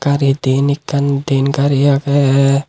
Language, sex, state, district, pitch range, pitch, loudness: Chakma, male, Tripura, Unakoti, 135-140 Hz, 140 Hz, -14 LUFS